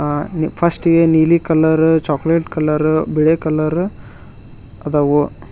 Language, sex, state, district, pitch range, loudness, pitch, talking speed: Kannada, male, Karnataka, Koppal, 145-165 Hz, -15 LUFS, 155 Hz, 110 wpm